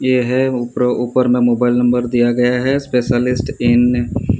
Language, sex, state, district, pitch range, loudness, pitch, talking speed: Hindi, male, Odisha, Sambalpur, 120-125 Hz, -15 LUFS, 125 Hz, 165 wpm